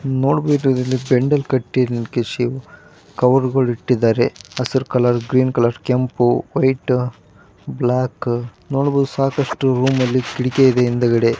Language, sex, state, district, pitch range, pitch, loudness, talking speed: Kannada, male, Karnataka, Gulbarga, 120-135 Hz, 125 Hz, -18 LUFS, 95 wpm